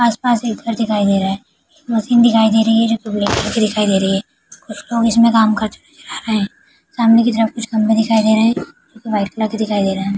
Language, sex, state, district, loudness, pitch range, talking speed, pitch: Hindi, female, Bihar, Araria, -15 LUFS, 210-230 Hz, 275 wpm, 225 Hz